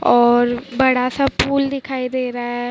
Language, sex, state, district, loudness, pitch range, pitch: Hindi, female, Maharashtra, Mumbai Suburban, -18 LUFS, 240-265 Hz, 250 Hz